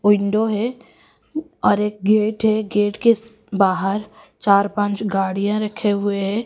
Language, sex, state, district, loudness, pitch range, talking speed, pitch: Hindi, female, Odisha, Khordha, -19 LUFS, 200-220 Hz, 150 wpm, 210 Hz